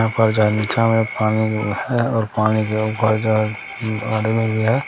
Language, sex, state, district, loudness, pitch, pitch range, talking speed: Hindi, male, Bihar, Bhagalpur, -19 LUFS, 110 Hz, 110-115 Hz, 195 wpm